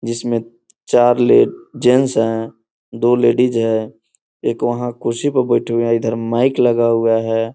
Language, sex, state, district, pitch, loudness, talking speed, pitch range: Hindi, male, Bihar, Gopalganj, 115 Hz, -16 LUFS, 160 wpm, 115-120 Hz